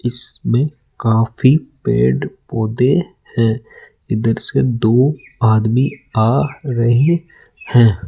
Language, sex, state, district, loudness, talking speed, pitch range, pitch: Hindi, male, Rajasthan, Jaipur, -16 LUFS, 90 wpm, 110-135 Hz, 120 Hz